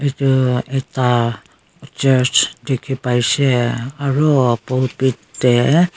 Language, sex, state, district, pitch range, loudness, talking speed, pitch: Nagamese, female, Nagaland, Kohima, 120-135 Hz, -17 LUFS, 80 wpm, 130 Hz